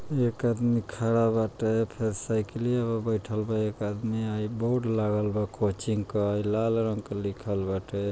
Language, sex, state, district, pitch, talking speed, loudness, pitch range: Bhojpuri, male, Uttar Pradesh, Ghazipur, 110 Hz, 175 wpm, -28 LUFS, 105-115 Hz